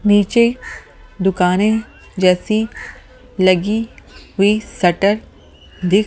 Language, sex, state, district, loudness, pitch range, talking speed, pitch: Hindi, female, Delhi, New Delhi, -16 LUFS, 185-215 Hz, 70 wpm, 200 Hz